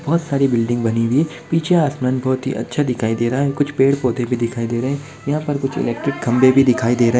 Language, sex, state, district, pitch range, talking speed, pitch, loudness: Hindi, male, Bihar, Madhepura, 120-145 Hz, 265 wpm, 130 Hz, -18 LUFS